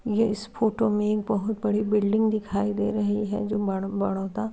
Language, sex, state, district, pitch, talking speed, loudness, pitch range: Hindi, male, Uttar Pradesh, Varanasi, 210 Hz, 200 wpm, -25 LUFS, 205-215 Hz